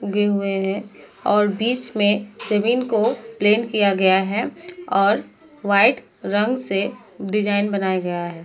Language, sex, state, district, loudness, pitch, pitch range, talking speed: Hindi, female, Uttar Pradesh, Muzaffarnagar, -20 LUFS, 205 Hz, 195-225 Hz, 140 wpm